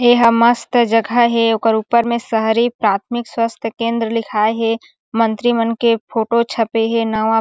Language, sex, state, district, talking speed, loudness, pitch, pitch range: Chhattisgarhi, female, Chhattisgarh, Sarguja, 155 wpm, -16 LUFS, 230 Hz, 225-235 Hz